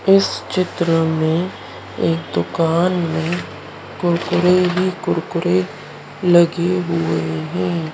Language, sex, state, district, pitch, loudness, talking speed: Hindi, female, Madhya Pradesh, Dhar, 165 Hz, -18 LUFS, 90 wpm